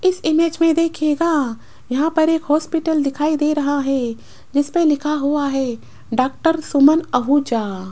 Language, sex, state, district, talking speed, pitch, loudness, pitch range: Hindi, female, Rajasthan, Jaipur, 150 wpm, 300 Hz, -18 LUFS, 270-320 Hz